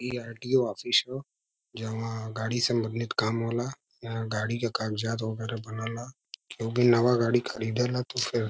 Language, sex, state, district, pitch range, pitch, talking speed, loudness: Bhojpuri, male, Uttar Pradesh, Varanasi, 110-120 Hz, 115 Hz, 155 wpm, -29 LUFS